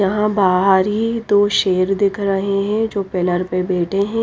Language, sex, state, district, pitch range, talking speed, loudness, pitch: Hindi, female, Odisha, Nuapada, 185-205 Hz, 185 wpm, -17 LUFS, 195 Hz